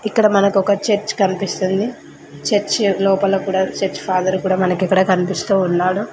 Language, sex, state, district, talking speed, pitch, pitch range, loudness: Telugu, female, Telangana, Mahabubabad, 125 wpm, 195 Hz, 185-200 Hz, -17 LUFS